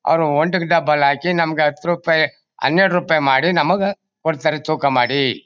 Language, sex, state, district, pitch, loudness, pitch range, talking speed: Kannada, male, Karnataka, Mysore, 160 Hz, -17 LUFS, 145-175 Hz, 175 wpm